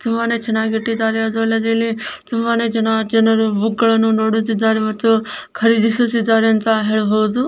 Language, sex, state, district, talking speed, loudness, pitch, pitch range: Kannada, male, Karnataka, Belgaum, 110 wpm, -16 LUFS, 225 Hz, 220-230 Hz